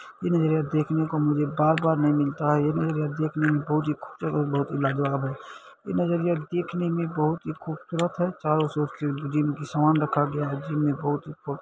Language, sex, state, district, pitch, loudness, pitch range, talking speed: Maithili, male, Bihar, Madhepura, 150 Hz, -26 LUFS, 145-160 Hz, 210 wpm